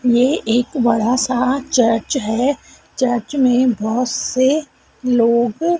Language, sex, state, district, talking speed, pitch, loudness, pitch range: Hindi, female, Madhya Pradesh, Dhar, 115 wpm, 250 Hz, -17 LUFS, 235-265 Hz